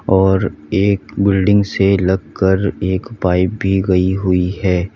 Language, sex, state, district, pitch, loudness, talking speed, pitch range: Hindi, male, Uttar Pradesh, Lalitpur, 95 Hz, -16 LUFS, 135 wpm, 90-100 Hz